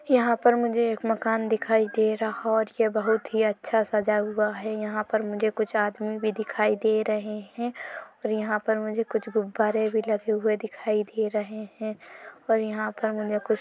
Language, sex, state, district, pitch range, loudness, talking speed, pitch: Hindi, female, Chhattisgarh, Korba, 215-225 Hz, -26 LUFS, 195 wpm, 220 Hz